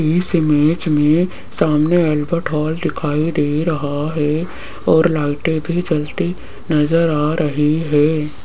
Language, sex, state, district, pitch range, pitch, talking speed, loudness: Hindi, female, Rajasthan, Jaipur, 150-165 Hz, 155 Hz, 130 wpm, -17 LUFS